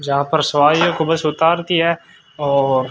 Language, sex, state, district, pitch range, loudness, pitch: Hindi, male, Rajasthan, Bikaner, 140-165 Hz, -16 LUFS, 155 Hz